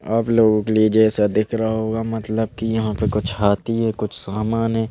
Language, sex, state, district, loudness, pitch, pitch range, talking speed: Hindi, male, Madhya Pradesh, Bhopal, -20 LUFS, 110 Hz, 105-115 Hz, 220 wpm